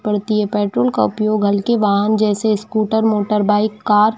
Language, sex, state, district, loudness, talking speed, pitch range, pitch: Hindi, female, Jharkhand, Jamtara, -16 LUFS, 175 wpm, 205-215 Hz, 210 Hz